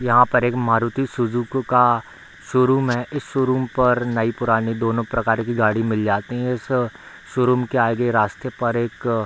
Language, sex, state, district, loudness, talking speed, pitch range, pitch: Hindi, male, Bihar, Bhagalpur, -20 LUFS, 200 wpm, 115-125 Hz, 120 Hz